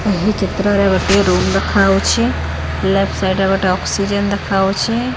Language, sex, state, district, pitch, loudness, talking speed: Odia, female, Odisha, Khordha, 190 Hz, -15 LUFS, 125 wpm